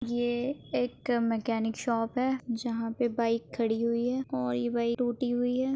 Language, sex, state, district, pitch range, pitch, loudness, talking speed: Hindi, female, Maharashtra, Aurangabad, 230-245 Hz, 240 Hz, -30 LUFS, 175 wpm